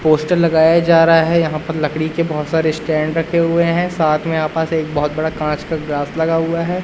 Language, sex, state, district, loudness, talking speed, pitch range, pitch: Hindi, male, Madhya Pradesh, Umaria, -16 LUFS, 235 wpm, 155-165 Hz, 160 Hz